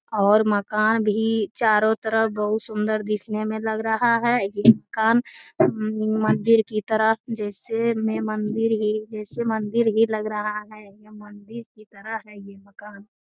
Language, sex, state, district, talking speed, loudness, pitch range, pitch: Hindi, female, Bihar, Jamui, 130 wpm, -22 LUFS, 210-225 Hz, 215 Hz